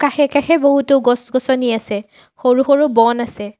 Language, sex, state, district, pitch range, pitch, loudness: Assamese, female, Assam, Sonitpur, 235-280 Hz, 255 Hz, -15 LUFS